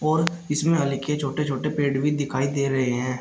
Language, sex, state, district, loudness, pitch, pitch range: Hindi, male, Uttar Pradesh, Shamli, -24 LUFS, 145 Hz, 135-150 Hz